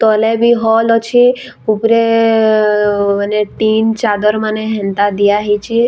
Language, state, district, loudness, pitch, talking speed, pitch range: Sambalpuri, Odisha, Sambalpur, -12 LUFS, 220 Hz, 130 wpm, 210-230 Hz